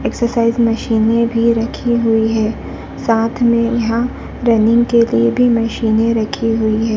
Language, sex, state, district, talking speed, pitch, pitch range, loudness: Hindi, female, Madhya Pradesh, Dhar, 145 wpm, 230 Hz, 225-235 Hz, -15 LUFS